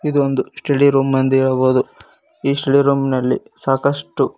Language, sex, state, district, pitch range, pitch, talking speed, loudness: Kannada, male, Karnataka, Koppal, 130-140 Hz, 135 Hz, 135 wpm, -17 LUFS